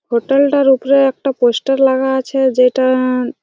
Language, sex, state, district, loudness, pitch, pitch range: Bengali, female, West Bengal, Jhargram, -13 LUFS, 265 Hz, 255-270 Hz